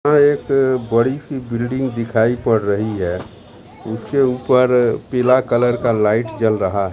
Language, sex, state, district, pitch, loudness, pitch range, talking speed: Hindi, male, Bihar, Katihar, 120 Hz, -17 LUFS, 110-130 Hz, 145 wpm